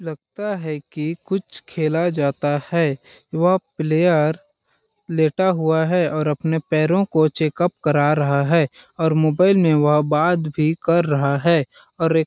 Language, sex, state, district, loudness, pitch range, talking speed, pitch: Hindi, male, Chhattisgarh, Balrampur, -19 LUFS, 150-175 Hz, 150 wpm, 160 Hz